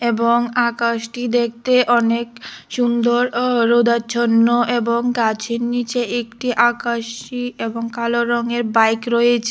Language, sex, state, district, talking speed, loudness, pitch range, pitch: Bengali, female, Tripura, West Tripura, 105 wpm, -18 LUFS, 235-240 Hz, 235 Hz